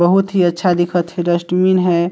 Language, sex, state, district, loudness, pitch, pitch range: Chhattisgarhi, male, Chhattisgarh, Sarguja, -15 LUFS, 175 Hz, 175-185 Hz